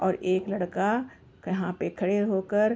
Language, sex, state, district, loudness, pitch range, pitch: Hindi, female, Uttar Pradesh, Varanasi, -28 LUFS, 185-205 Hz, 190 Hz